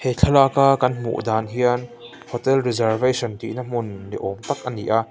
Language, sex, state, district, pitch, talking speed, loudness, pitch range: Mizo, male, Mizoram, Aizawl, 120 Hz, 200 wpm, -21 LUFS, 110-125 Hz